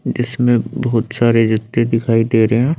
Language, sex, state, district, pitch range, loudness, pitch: Hindi, male, Chandigarh, Chandigarh, 115-120 Hz, -15 LUFS, 115 Hz